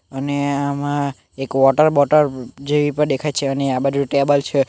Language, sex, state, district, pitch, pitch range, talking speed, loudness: Gujarati, male, Gujarat, Navsari, 140 Hz, 135-145 Hz, 180 wpm, -18 LUFS